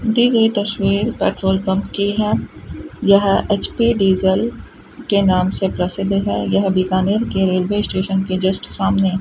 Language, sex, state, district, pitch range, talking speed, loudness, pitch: Hindi, female, Rajasthan, Bikaner, 190-205 Hz, 155 wpm, -17 LUFS, 195 Hz